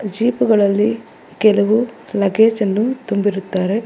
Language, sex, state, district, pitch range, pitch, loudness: Kannada, female, Karnataka, Bangalore, 200-225 Hz, 215 Hz, -16 LUFS